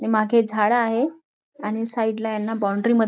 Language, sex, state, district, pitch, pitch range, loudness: Marathi, female, Maharashtra, Nagpur, 225 Hz, 215-235 Hz, -22 LUFS